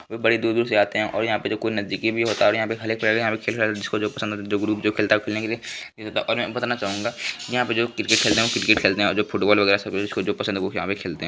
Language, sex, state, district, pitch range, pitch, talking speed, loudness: Hindi, male, Bihar, Begusarai, 100-115 Hz, 105 Hz, 240 wpm, -22 LUFS